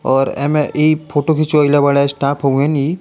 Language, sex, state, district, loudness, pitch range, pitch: Bhojpuri, male, Bihar, Muzaffarpur, -14 LUFS, 140-150 Hz, 145 Hz